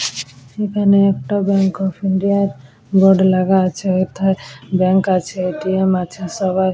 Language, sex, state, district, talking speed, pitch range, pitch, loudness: Bengali, female, West Bengal, Dakshin Dinajpur, 135 wpm, 185-195 Hz, 190 Hz, -16 LUFS